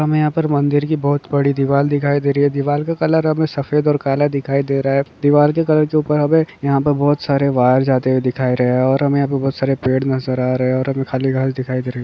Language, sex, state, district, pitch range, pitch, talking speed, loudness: Hindi, male, Bihar, Kishanganj, 130-145 Hz, 140 Hz, 290 wpm, -16 LUFS